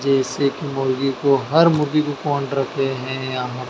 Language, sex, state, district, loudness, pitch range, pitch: Hindi, male, Madhya Pradesh, Dhar, -20 LUFS, 130-145 Hz, 135 Hz